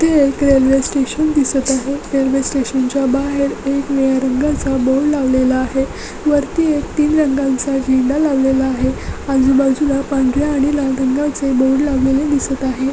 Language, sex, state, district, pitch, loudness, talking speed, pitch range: Marathi, female, Maharashtra, Dhule, 275 Hz, -16 LUFS, 145 wpm, 265-285 Hz